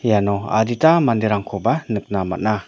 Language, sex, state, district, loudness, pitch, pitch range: Garo, male, Meghalaya, North Garo Hills, -19 LUFS, 110 Hz, 100-120 Hz